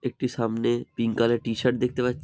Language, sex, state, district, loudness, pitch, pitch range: Bengali, male, West Bengal, Jalpaiguri, -26 LUFS, 120 Hz, 115-125 Hz